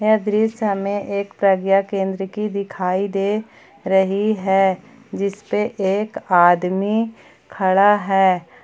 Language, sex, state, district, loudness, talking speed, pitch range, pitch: Hindi, female, Jharkhand, Palamu, -19 LUFS, 110 wpm, 190-210 Hz, 200 Hz